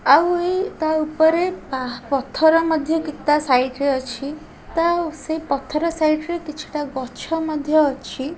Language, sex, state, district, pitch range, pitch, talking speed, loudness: Odia, female, Odisha, Khordha, 280-325 Hz, 310 Hz, 165 wpm, -20 LUFS